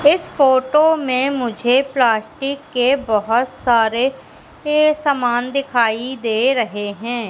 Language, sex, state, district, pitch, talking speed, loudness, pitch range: Hindi, female, Madhya Pradesh, Katni, 255 Hz, 115 wpm, -17 LUFS, 235-275 Hz